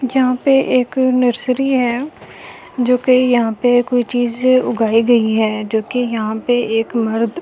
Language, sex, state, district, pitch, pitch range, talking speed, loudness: Hindi, female, Delhi, New Delhi, 245 Hz, 230-255 Hz, 170 wpm, -15 LUFS